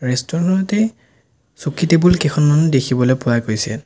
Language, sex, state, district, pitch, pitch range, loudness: Assamese, male, Assam, Sonitpur, 150 Hz, 125-170 Hz, -16 LUFS